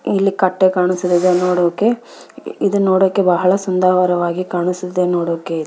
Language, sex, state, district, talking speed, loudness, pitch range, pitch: Kannada, female, Karnataka, Bellary, 115 wpm, -16 LUFS, 180-190 Hz, 180 Hz